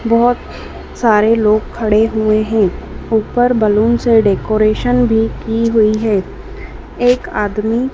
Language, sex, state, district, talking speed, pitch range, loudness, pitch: Hindi, female, Madhya Pradesh, Dhar, 120 wpm, 215-235 Hz, -14 LUFS, 225 Hz